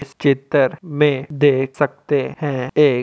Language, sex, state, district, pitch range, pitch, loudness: Hindi, male, Uttar Pradesh, Etah, 135-150 Hz, 145 Hz, -18 LUFS